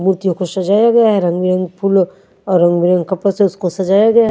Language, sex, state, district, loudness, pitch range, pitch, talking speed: Hindi, female, Haryana, Charkhi Dadri, -14 LUFS, 180-200 Hz, 190 Hz, 225 wpm